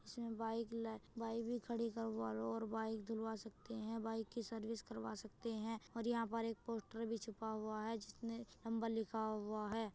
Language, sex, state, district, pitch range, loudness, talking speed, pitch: Hindi, female, Uttar Pradesh, Jyotiba Phule Nagar, 220-230 Hz, -45 LUFS, 195 wpm, 225 Hz